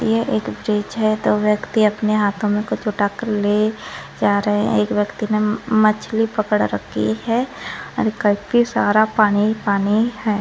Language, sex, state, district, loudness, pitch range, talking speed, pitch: Hindi, female, Goa, North and South Goa, -19 LUFS, 205-220 Hz, 160 wpm, 210 Hz